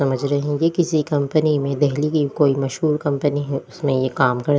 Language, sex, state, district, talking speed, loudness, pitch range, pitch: Hindi, female, Delhi, New Delhi, 235 wpm, -20 LUFS, 135-150 Hz, 145 Hz